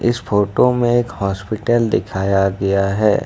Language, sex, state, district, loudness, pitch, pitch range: Hindi, male, Jharkhand, Ranchi, -17 LUFS, 105 Hz, 95-120 Hz